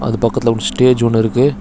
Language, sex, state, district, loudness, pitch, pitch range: Tamil, male, Tamil Nadu, Chennai, -14 LUFS, 115 Hz, 115-125 Hz